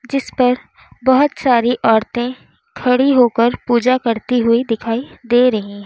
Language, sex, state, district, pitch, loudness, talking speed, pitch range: Hindi, female, Uttar Pradesh, Lalitpur, 245 Hz, -16 LUFS, 145 wpm, 230-255 Hz